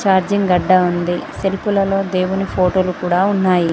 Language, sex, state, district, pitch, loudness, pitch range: Telugu, female, Telangana, Mahabubabad, 185 Hz, -16 LUFS, 180-195 Hz